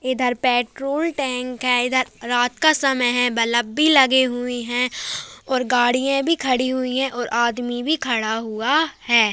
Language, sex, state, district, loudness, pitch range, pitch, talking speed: Hindi, male, Uttarakhand, Tehri Garhwal, -20 LUFS, 245-270 Hz, 250 Hz, 165 wpm